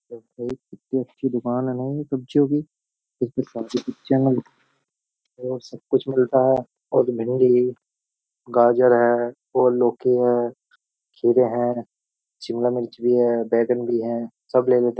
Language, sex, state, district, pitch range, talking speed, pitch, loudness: Hindi, male, Uttar Pradesh, Jyotiba Phule Nagar, 120-130 Hz, 130 wpm, 125 Hz, -21 LUFS